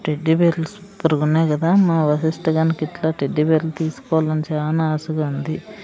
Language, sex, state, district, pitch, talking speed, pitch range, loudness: Telugu, female, Andhra Pradesh, Sri Satya Sai, 160 Hz, 125 wpm, 155-165 Hz, -19 LUFS